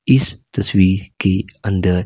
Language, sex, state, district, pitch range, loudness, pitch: Hindi, male, Himachal Pradesh, Shimla, 90-100 Hz, -17 LUFS, 95 Hz